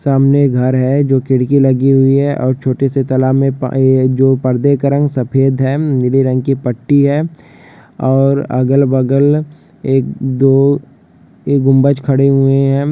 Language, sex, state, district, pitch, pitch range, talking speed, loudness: Hindi, male, Jharkhand, Sahebganj, 135 Hz, 130-140 Hz, 170 wpm, -12 LUFS